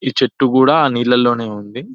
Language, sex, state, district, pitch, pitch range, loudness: Telugu, male, Telangana, Nalgonda, 125 Hz, 120-130 Hz, -14 LUFS